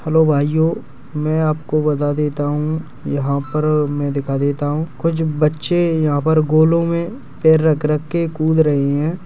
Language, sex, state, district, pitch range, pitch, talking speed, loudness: Hindi, male, Uttar Pradesh, Hamirpur, 145-160 Hz, 155 Hz, 170 wpm, -17 LUFS